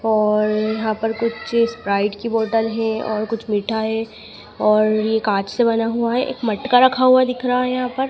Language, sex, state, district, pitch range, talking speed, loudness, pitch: Hindi, female, Madhya Pradesh, Dhar, 215-240 Hz, 205 wpm, -19 LUFS, 225 Hz